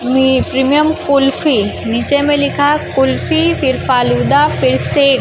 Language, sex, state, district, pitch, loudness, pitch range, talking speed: Hindi, male, Chhattisgarh, Raipur, 265 Hz, -13 LUFS, 225-285 Hz, 140 wpm